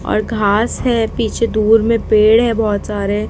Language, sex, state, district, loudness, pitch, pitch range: Hindi, female, Maharashtra, Mumbai Suburban, -14 LUFS, 220 Hz, 210-230 Hz